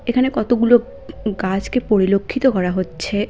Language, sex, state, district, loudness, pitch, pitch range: Bengali, female, West Bengal, Cooch Behar, -18 LUFS, 215 Hz, 190-245 Hz